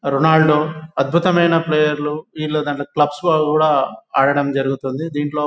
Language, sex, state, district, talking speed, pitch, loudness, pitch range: Telugu, male, Telangana, Nalgonda, 110 wpm, 150 Hz, -17 LUFS, 145-155 Hz